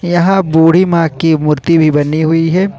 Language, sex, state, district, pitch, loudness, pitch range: Hindi, male, Jharkhand, Ranchi, 165 Hz, -11 LUFS, 155-175 Hz